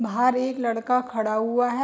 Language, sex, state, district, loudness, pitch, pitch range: Hindi, female, Bihar, Saharsa, -24 LUFS, 245 Hz, 225-250 Hz